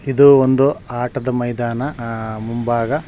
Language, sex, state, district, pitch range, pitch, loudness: Kannada, male, Karnataka, Shimoga, 115-135 Hz, 120 Hz, -17 LUFS